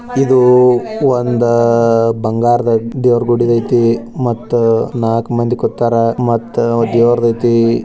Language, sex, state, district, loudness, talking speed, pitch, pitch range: Kannada, male, Karnataka, Bijapur, -13 LUFS, 105 wpm, 120 Hz, 115-120 Hz